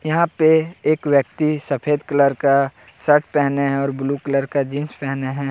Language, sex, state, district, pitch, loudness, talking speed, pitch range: Hindi, male, Jharkhand, Deoghar, 140 Hz, -19 LUFS, 185 wpm, 140-150 Hz